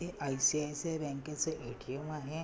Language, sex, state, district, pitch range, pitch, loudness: Marathi, male, Maharashtra, Nagpur, 140-160 Hz, 150 Hz, -36 LUFS